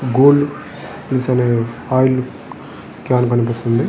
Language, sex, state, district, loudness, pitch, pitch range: Telugu, male, Andhra Pradesh, Guntur, -16 LUFS, 125 Hz, 120-130 Hz